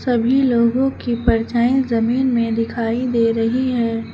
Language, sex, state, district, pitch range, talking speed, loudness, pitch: Hindi, female, Uttar Pradesh, Lucknow, 230-250 Hz, 145 wpm, -18 LUFS, 235 Hz